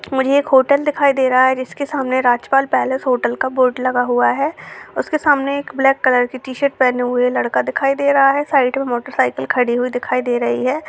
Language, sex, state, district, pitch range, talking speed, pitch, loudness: Hindi, female, Bihar, Jamui, 250-280 Hz, 235 wpm, 260 Hz, -16 LUFS